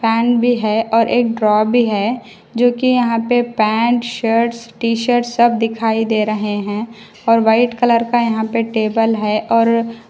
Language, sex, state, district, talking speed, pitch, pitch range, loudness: Hindi, female, Karnataka, Koppal, 180 wpm, 230 Hz, 220-240 Hz, -16 LUFS